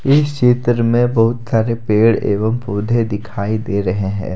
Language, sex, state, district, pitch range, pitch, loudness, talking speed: Hindi, male, Jharkhand, Deoghar, 105-120 Hz, 115 Hz, -16 LUFS, 165 wpm